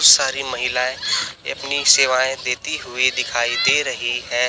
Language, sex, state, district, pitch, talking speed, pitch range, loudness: Hindi, male, Chhattisgarh, Raipur, 130 Hz, 135 wpm, 125-135 Hz, -18 LUFS